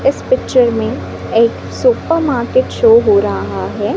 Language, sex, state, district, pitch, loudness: Hindi, female, Chhattisgarh, Raipur, 330 Hz, -14 LUFS